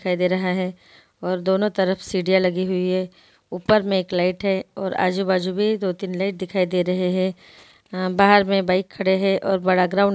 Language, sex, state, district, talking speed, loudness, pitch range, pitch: Hindi, female, Bihar, Gopalganj, 205 wpm, -21 LUFS, 185-195 Hz, 185 Hz